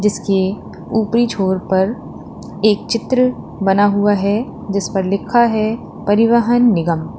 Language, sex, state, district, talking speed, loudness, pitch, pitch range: Hindi, female, Uttar Pradesh, Lalitpur, 125 wpm, -16 LUFS, 210 Hz, 195-230 Hz